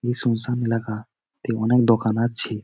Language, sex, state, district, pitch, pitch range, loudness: Bengali, male, West Bengal, Jalpaiguri, 115 Hz, 110-120 Hz, -22 LUFS